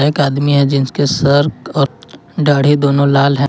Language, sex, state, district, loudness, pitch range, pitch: Hindi, male, Jharkhand, Ranchi, -13 LUFS, 140-145 Hz, 140 Hz